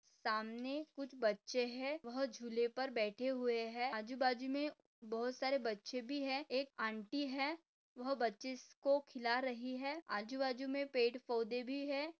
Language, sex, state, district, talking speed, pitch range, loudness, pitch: Hindi, female, Maharashtra, Pune, 155 wpm, 235-275 Hz, -41 LUFS, 260 Hz